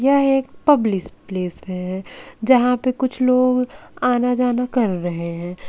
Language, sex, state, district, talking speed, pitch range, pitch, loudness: Hindi, male, Maharashtra, Gondia, 150 wpm, 185-255 Hz, 250 Hz, -20 LUFS